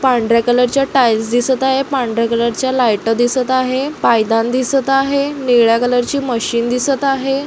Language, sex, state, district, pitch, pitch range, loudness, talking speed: Marathi, female, Maharashtra, Solapur, 250 Hz, 235-270 Hz, -15 LUFS, 170 wpm